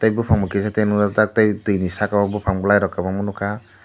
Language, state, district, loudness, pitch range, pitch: Kokborok, Tripura, Dhalai, -19 LUFS, 100-105 Hz, 105 Hz